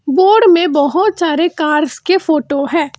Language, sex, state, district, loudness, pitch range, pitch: Hindi, female, Karnataka, Bangalore, -12 LUFS, 295-365 Hz, 325 Hz